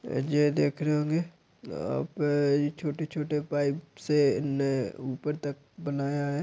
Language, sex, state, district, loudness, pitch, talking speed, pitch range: Hindi, male, Bihar, Muzaffarpur, -29 LUFS, 145 Hz, 140 wpm, 140-150 Hz